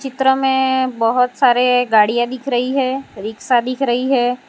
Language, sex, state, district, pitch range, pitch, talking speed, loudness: Hindi, female, Gujarat, Valsad, 240-265 Hz, 250 Hz, 160 wpm, -16 LUFS